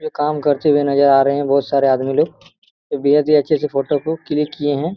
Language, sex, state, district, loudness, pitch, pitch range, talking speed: Hindi, male, Bihar, Araria, -16 LUFS, 145 Hz, 140-150 Hz, 230 wpm